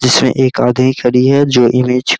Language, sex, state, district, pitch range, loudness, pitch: Hindi, male, Bihar, Araria, 125-130 Hz, -11 LUFS, 125 Hz